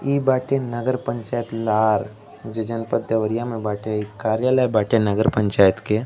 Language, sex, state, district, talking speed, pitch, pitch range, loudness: Bhojpuri, male, Uttar Pradesh, Deoria, 160 wpm, 115 Hz, 110-120 Hz, -21 LUFS